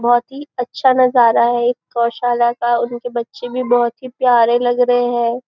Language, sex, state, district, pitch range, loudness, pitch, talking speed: Hindi, female, Maharashtra, Nagpur, 240-250 Hz, -16 LUFS, 245 Hz, 185 wpm